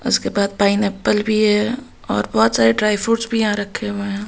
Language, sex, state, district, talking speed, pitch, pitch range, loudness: Hindi, female, Bihar, Katihar, 210 wpm, 205 Hz, 200-215 Hz, -18 LUFS